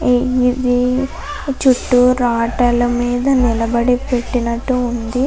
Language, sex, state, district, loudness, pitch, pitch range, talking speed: Telugu, female, Andhra Pradesh, Chittoor, -16 LUFS, 245 Hz, 240-255 Hz, 80 wpm